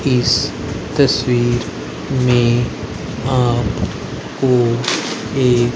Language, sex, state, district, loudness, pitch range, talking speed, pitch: Hindi, male, Haryana, Rohtak, -17 LUFS, 120-130 Hz, 65 wpm, 125 Hz